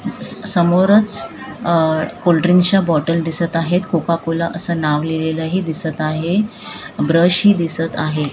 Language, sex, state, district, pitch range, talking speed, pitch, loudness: Marathi, female, Maharashtra, Mumbai Suburban, 160-180 Hz, 135 wpm, 170 Hz, -16 LUFS